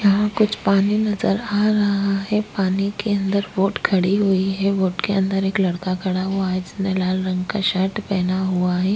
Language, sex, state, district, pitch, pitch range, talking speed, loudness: Hindi, female, Maharashtra, Aurangabad, 195 Hz, 185-205 Hz, 205 wpm, -20 LUFS